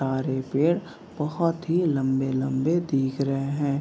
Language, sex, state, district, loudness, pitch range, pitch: Hindi, male, Bihar, Vaishali, -25 LUFS, 135-160 Hz, 140 Hz